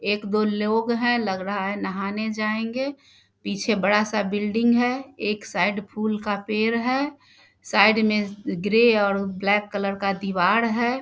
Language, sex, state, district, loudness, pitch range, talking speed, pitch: Hindi, female, Bihar, Darbhanga, -23 LUFS, 200-230 Hz, 150 wpm, 215 Hz